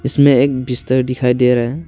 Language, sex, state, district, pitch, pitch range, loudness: Hindi, male, Arunachal Pradesh, Longding, 130 Hz, 125-135 Hz, -14 LUFS